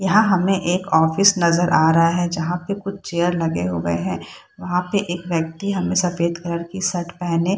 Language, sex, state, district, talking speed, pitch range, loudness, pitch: Hindi, female, Bihar, Saharsa, 200 wpm, 170-190 Hz, -20 LUFS, 175 Hz